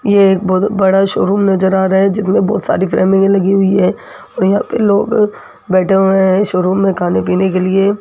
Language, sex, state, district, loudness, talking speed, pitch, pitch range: Hindi, female, Rajasthan, Jaipur, -12 LUFS, 215 wpm, 195 Hz, 190-200 Hz